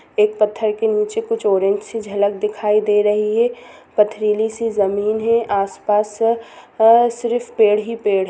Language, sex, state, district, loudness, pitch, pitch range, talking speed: Hindi, female, Chhattisgarh, Sukma, -18 LUFS, 215 Hz, 210-230 Hz, 165 wpm